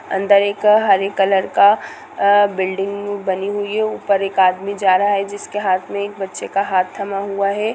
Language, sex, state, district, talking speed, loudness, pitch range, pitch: Hindi, female, Bihar, Gopalganj, 195 wpm, -17 LUFS, 195-205 Hz, 200 Hz